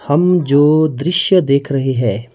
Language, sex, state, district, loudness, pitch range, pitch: Hindi, male, Himachal Pradesh, Shimla, -13 LUFS, 135-175 Hz, 145 Hz